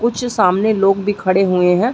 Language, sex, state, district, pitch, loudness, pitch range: Hindi, female, Uttar Pradesh, Muzaffarnagar, 195 Hz, -15 LUFS, 185-220 Hz